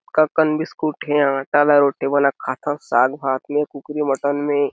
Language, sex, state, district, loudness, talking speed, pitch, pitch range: Chhattisgarhi, male, Chhattisgarh, Sarguja, -19 LUFS, 205 wpm, 145 Hz, 140-150 Hz